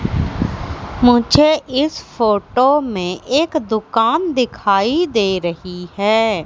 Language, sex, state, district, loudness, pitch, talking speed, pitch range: Hindi, female, Madhya Pradesh, Katni, -16 LUFS, 225 Hz, 95 wpm, 200-280 Hz